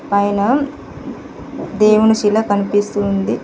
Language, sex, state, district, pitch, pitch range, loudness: Telugu, female, Telangana, Mahabubabad, 205 Hz, 200-220 Hz, -15 LUFS